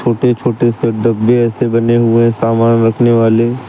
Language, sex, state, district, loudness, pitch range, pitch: Hindi, male, Uttar Pradesh, Lucknow, -12 LUFS, 115-120 Hz, 115 Hz